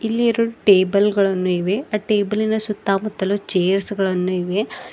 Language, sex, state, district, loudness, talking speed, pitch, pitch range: Kannada, female, Karnataka, Bidar, -19 LUFS, 135 wpm, 200 Hz, 190-215 Hz